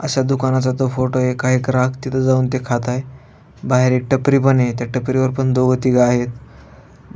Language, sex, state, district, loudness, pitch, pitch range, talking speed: Marathi, male, Maharashtra, Aurangabad, -17 LUFS, 130 Hz, 125-130 Hz, 200 wpm